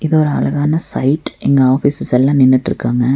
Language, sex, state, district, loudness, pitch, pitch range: Tamil, female, Tamil Nadu, Nilgiris, -14 LUFS, 140 Hz, 130-150 Hz